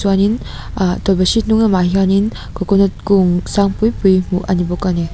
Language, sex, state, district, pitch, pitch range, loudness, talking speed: Mizo, female, Mizoram, Aizawl, 195 Hz, 185-205 Hz, -15 LUFS, 185 wpm